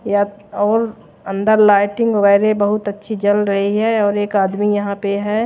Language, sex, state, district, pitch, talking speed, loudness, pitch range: Hindi, female, Odisha, Malkangiri, 205 Hz, 175 wpm, -16 LUFS, 200-215 Hz